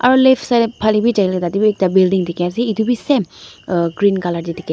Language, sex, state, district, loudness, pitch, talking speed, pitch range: Nagamese, female, Nagaland, Dimapur, -16 LUFS, 200 Hz, 190 wpm, 180-235 Hz